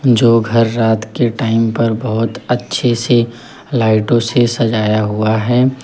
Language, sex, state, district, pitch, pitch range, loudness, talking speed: Hindi, male, Uttar Pradesh, Lalitpur, 115 Hz, 110-120 Hz, -14 LUFS, 145 wpm